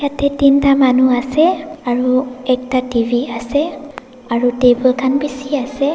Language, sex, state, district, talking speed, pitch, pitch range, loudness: Nagamese, female, Nagaland, Dimapur, 120 wpm, 260 Hz, 250-285 Hz, -15 LUFS